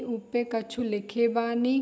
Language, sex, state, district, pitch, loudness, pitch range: Hindi, female, Bihar, Saharsa, 235 Hz, -28 LUFS, 225-240 Hz